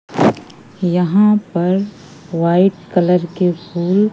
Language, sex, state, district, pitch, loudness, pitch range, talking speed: Hindi, female, Madhya Pradesh, Katni, 180 Hz, -16 LUFS, 175-195 Hz, 85 wpm